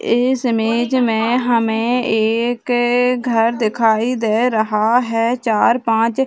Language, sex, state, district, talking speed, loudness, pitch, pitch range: Hindi, female, Bihar, Madhepura, 125 wpm, -16 LUFS, 235 Hz, 225-245 Hz